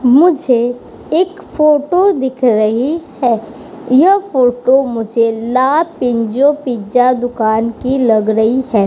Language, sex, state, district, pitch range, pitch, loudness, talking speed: Hindi, female, Uttar Pradesh, Budaun, 230-290 Hz, 250 Hz, -13 LUFS, 115 wpm